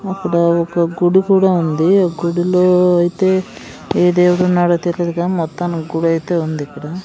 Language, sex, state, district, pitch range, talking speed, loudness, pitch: Telugu, female, Andhra Pradesh, Sri Satya Sai, 170-180 Hz, 130 wpm, -15 LUFS, 175 Hz